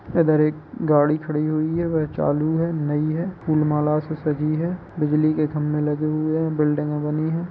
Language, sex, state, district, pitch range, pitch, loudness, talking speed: Hindi, male, Bihar, Jamui, 150-160 Hz, 155 Hz, -22 LUFS, 190 wpm